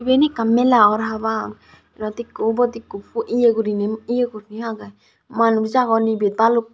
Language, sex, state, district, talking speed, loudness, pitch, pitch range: Chakma, female, Tripura, Dhalai, 160 wpm, -19 LUFS, 225 Hz, 215-235 Hz